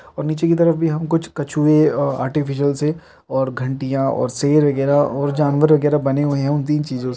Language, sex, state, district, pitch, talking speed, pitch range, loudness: Hindi, male, Chhattisgarh, Raigarh, 145 Hz, 220 wpm, 135-150 Hz, -18 LUFS